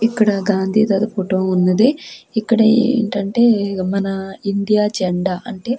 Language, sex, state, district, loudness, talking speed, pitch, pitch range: Telugu, female, Andhra Pradesh, Krishna, -17 LUFS, 125 wpm, 200 Hz, 195-225 Hz